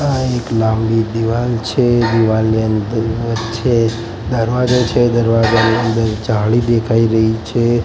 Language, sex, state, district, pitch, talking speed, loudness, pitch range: Gujarati, male, Gujarat, Gandhinagar, 115 Hz, 120 wpm, -15 LUFS, 110-120 Hz